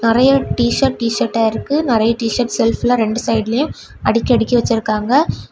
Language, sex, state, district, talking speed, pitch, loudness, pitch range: Tamil, female, Tamil Nadu, Kanyakumari, 130 wpm, 230 Hz, -16 LUFS, 225-245 Hz